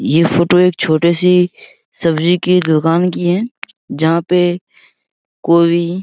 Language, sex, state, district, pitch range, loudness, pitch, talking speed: Hindi, male, Bihar, Araria, 165-180 Hz, -13 LUFS, 175 Hz, 140 wpm